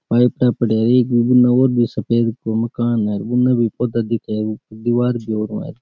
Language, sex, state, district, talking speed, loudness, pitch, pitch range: Rajasthani, male, Rajasthan, Nagaur, 135 wpm, -17 LUFS, 120 Hz, 110-125 Hz